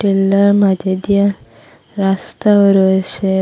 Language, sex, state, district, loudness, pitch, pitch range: Bengali, female, Assam, Hailakandi, -13 LUFS, 195 Hz, 190-200 Hz